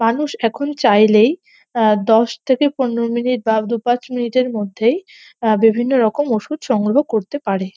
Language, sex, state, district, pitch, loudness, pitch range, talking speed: Bengali, female, West Bengal, North 24 Parganas, 235 Hz, -17 LUFS, 220-270 Hz, 160 wpm